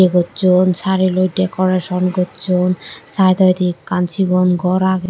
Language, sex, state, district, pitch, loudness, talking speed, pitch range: Chakma, female, Tripura, Dhalai, 185 Hz, -16 LUFS, 120 wpm, 180-185 Hz